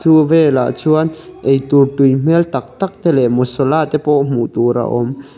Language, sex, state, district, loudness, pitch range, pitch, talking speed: Mizo, male, Mizoram, Aizawl, -14 LUFS, 130-155 Hz, 140 Hz, 165 wpm